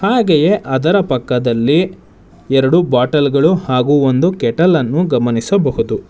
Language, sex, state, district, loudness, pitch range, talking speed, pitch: Kannada, male, Karnataka, Bangalore, -14 LUFS, 125-175 Hz, 110 wpm, 145 Hz